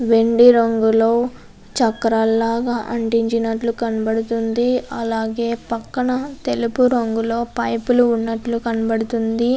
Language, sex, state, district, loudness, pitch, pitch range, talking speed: Telugu, female, Andhra Pradesh, Anantapur, -18 LUFS, 230 Hz, 225-240 Hz, 90 wpm